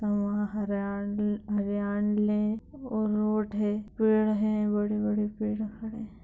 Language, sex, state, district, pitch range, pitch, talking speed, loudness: Hindi, female, Bihar, Madhepura, 210-215 Hz, 210 Hz, 115 wpm, -29 LUFS